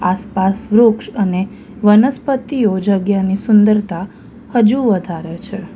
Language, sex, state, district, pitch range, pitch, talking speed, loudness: Gujarati, female, Gujarat, Valsad, 190-225 Hz, 210 Hz, 95 wpm, -15 LUFS